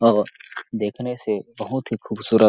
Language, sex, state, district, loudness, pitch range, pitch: Hindi, male, Chhattisgarh, Sarguja, -25 LUFS, 105-125 Hz, 115 Hz